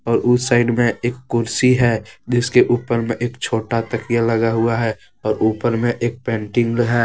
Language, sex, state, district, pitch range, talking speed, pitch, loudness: Hindi, male, Jharkhand, Deoghar, 115-120 Hz, 185 wpm, 120 Hz, -18 LUFS